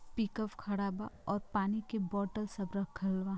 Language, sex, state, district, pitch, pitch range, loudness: Bhojpuri, female, Bihar, Gopalganj, 200 Hz, 195-215 Hz, -37 LUFS